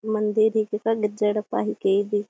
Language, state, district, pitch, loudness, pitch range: Kurukh, Chhattisgarh, Jashpur, 210 Hz, -23 LUFS, 205-215 Hz